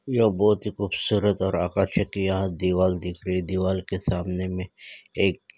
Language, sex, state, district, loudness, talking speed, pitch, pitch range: Hindi, male, Uttarakhand, Uttarkashi, -25 LUFS, 170 wpm, 95 Hz, 90-100 Hz